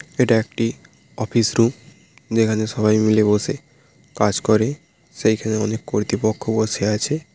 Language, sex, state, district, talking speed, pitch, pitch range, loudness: Bengali, male, West Bengal, Paschim Medinipur, 120 wpm, 110 Hz, 110-130 Hz, -20 LUFS